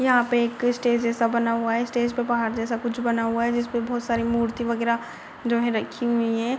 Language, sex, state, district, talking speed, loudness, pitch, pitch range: Hindi, female, Bihar, Madhepura, 275 wpm, -24 LUFS, 235 Hz, 230-240 Hz